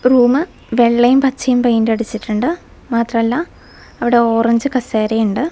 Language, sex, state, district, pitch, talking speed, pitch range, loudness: Malayalam, female, Kerala, Wayanad, 240 Hz, 110 wpm, 230-255 Hz, -15 LUFS